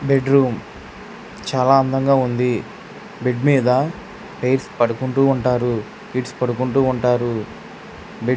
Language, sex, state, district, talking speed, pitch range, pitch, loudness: Telugu, male, Andhra Pradesh, Krishna, 105 wpm, 125-135 Hz, 130 Hz, -19 LUFS